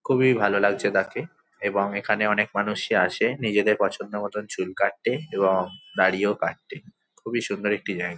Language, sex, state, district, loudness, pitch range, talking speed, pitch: Bengali, male, West Bengal, Jhargram, -24 LUFS, 100-105 Hz, 145 wpm, 105 Hz